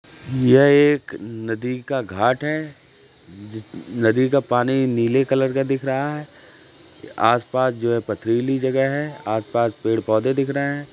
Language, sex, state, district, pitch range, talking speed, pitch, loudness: Hindi, male, Uttar Pradesh, Jalaun, 115-140 Hz, 150 wpm, 130 Hz, -20 LUFS